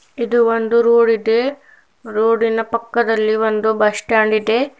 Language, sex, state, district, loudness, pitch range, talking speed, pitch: Kannada, female, Karnataka, Bidar, -16 LUFS, 220-235 Hz, 135 wpm, 230 Hz